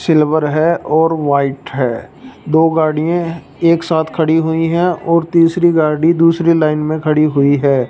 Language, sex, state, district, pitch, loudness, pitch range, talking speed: Hindi, male, Punjab, Fazilka, 160 Hz, -14 LUFS, 155-165 Hz, 160 wpm